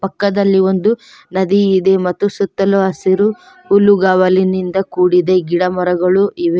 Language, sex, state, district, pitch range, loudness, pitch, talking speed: Kannada, female, Karnataka, Koppal, 185-200 Hz, -14 LUFS, 190 Hz, 110 wpm